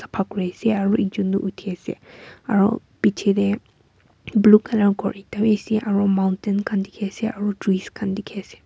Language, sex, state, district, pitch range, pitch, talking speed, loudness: Nagamese, female, Nagaland, Kohima, 195-210 Hz, 200 Hz, 175 wpm, -21 LUFS